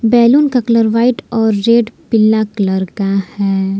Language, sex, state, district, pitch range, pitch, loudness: Hindi, female, Jharkhand, Palamu, 195-235 Hz, 220 Hz, -13 LUFS